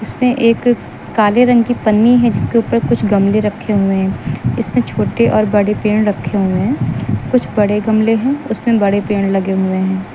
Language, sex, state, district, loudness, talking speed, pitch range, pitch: Hindi, female, Uttar Pradesh, Lucknow, -14 LUFS, 190 wpm, 195-230 Hz, 210 Hz